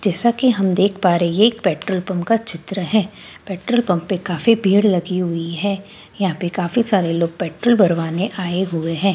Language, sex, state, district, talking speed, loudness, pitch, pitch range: Hindi, female, Delhi, New Delhi, 225 wpm, -18 LUFS, 190 Hz, 175-205 Hz